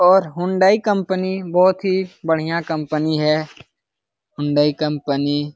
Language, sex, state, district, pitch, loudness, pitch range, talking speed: Hindi, male, Bihar, Lakhisarai, 160 Hz, -19 LUFS, 150-185 Hz, 120 wpm